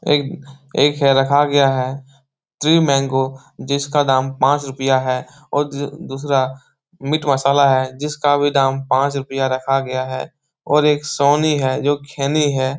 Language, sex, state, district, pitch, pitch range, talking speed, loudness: Hindi, male, Bihar, Jahanabad, 140 Hz, 135-145 Hz, 160 wpm, -18 LUFS